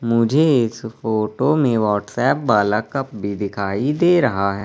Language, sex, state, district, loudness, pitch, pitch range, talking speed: Hindi, male, Madhya Pradesh, Katni, -19 LUFS, 115 Hz, 105-135 Hz, 155 wpm